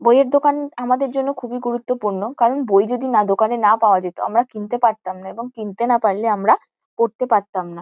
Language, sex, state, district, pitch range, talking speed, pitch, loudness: Bengali, female, West Bengal, Kolkata, 210-250 Hz, 200 wpm, 235 Hz, -19 LUFS